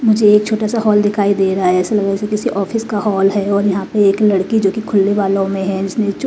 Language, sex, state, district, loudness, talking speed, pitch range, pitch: Hindi, female, Himachal Pradesh, Shimla, -15 LUFS, 295 wpm, 195-215 Hz, 200 Hz